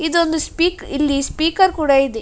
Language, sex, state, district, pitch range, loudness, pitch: Kannada, female, Karnataka, Dakshina Kannada, 280-340 Hz, -17 LUFS, 320 Hz